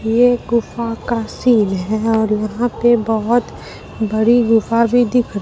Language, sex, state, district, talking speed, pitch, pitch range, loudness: Hindi, female, Bihar, Katihar, 145 wpm, 230 Hz, 220-240 Hz, -16 LUFS